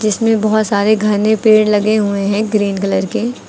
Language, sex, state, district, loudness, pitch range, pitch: Hindi, female, Uttar Pradesh, Lucknow, -14 LUFS, 205-220 Hz, 215 Hz